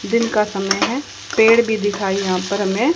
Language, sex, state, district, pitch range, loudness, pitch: Hindi, female, Haryana, Charkhi Dadri, 195-230 Hz, -18 LUFS, 210 Hz